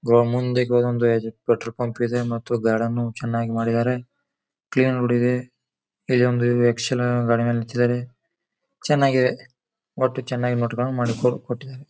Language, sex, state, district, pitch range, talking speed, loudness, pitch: Kannada, male, Karnataka, Bijapur, 120-125 Hz, 120 wpm, -22 LUFS, 120 Hz